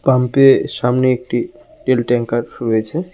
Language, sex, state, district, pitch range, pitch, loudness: Bengali, male, West Bengal, Cooch Behar, 120-130 Hz, 125 Hz, -16 LUFS